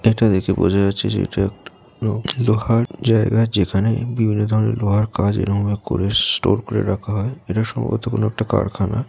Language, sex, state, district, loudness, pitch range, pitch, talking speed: Bengali, male, West Bengal, Jalpaiguri, -19 LUFS, 100-115 Hz, 110 Hz, 165 wpm